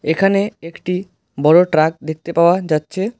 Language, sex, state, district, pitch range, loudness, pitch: Bengali, male, West Bengal, Alipurduar, 155-190 Hz, -16 LUFS, 170 Hz